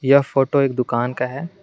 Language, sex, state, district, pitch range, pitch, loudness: Hindi, male, Jharkhand, Garhwa, 125-140 Hz, 135 Hz, -19 LUFS